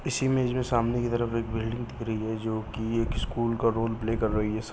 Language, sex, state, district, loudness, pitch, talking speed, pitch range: Hindi, male, Bihar, Bhagalpur, -28 LUFS, 115 Hz, 290 wpm, 110-120 Hz